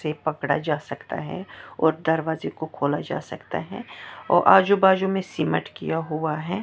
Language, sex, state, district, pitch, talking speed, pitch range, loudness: Hindi, male, Maharashtra, Mumbai Suburban, 160 Hz, 170 wpm, 150-185 Hz, -23 LUFS